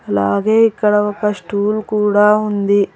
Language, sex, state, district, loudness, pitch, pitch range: Telugu, female, Telangana, Hyderabad, -15 LUFS, 210 Hz, 200-215 Hz